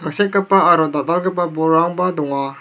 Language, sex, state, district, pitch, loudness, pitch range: Garo, male, Meghalaya, South Garo Hills, 170 Hz, -16 LUFS, 155-185 Hz